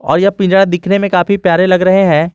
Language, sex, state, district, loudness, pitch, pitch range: Hindi, male, Jharkhand, Garhwa, -11 LUFS, 185 Hz, 175-195 Hz